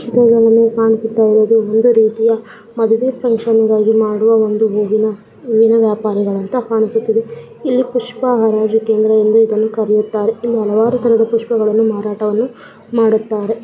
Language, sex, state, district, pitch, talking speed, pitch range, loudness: Kannada, female, Karnataka, Belgaum, 225 Hz, 110 wpm, 215-230 Hz, -14 LUFS